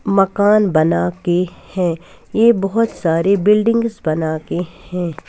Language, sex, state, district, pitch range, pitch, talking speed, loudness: Hindi, female, Bihar, West Champaran, 170-210 Hz, 180 Hz, 125 wpm, -17 LUFS